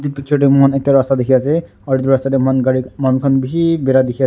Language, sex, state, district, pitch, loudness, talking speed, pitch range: Nagamese, male, Nagaland, Dimapur, 135 Hz, -14 LUFS, 295 wpm, 130-140 Hz